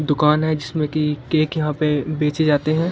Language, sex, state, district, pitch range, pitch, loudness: Hindi, female, Maharashtra, Chandrapur, 150-155 Hz, 150 Hz, -20 LUFS